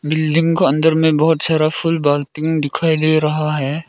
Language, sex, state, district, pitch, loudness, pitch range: Hindi, male, Arunachal Pradesh, Lower Dibang Valley, 155 Hz, -16 LUFS, 150-160 Hz